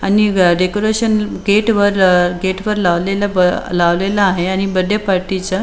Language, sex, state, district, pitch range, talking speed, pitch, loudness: Marathi, female, Maharashtra, Chandrapur, 180-205 Hz, 180 wpm, 190 Hz, -15 LUFS